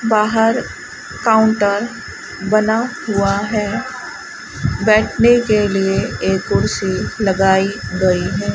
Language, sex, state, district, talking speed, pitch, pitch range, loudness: Hindi, male, Rajasthan, Bikaner, 90 wpm, 215 Hz, 195-225 Hz, -16 LUFS